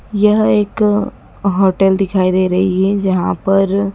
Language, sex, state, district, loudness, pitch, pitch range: Hindi, female, Madhya Pradesh, Dhar, -14 LUFS, 195 Hz, 190-200 Hz